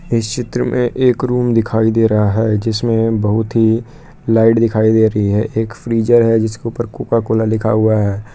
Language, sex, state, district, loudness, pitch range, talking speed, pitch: Hindi, male, Jharkhand, Palamu, -15 LUFS, 110-120 Hz, 195 wpm, 115 Hz